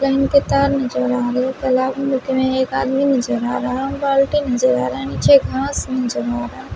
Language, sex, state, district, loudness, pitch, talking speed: Hindi, female, Bihar, West Champaran, -18 LUFS, 260 Hz, 230 wpm